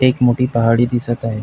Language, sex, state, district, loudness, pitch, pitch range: Marathi, male, Maharashtra, Pune, -16 LUFS, 120 Hz, 115-125 Hz